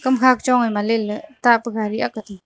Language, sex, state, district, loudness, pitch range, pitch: Wancho, female, Arunachal Pradesh, Longding, -19 LUFS, 215-255 Hz, 230 Hz